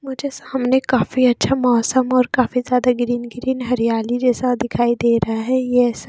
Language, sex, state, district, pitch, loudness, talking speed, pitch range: Hindi, female, Himachal Pradesh, Shimla, 250 Hz, -18 LUFS, 175 wpm, 240-255 Hz